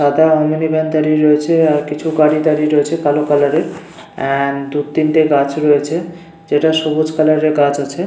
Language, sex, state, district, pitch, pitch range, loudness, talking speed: Bengali, male, West Bengal, Paschim Medinipur, 155 Hz, 145-160 Hz, -14 LUFS, 180 wpm